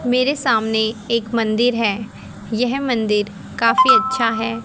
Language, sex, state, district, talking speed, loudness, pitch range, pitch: Hindi, female, Haryana, Jhajjar, 130 wpm, -18 LUFS, 220-250 Hz, 230 Hz